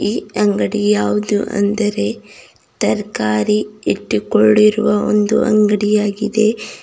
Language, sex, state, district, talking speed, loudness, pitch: Kannada, female, Karnataka, Bidar, 80 wpm, -16 LUFS, 205 Hz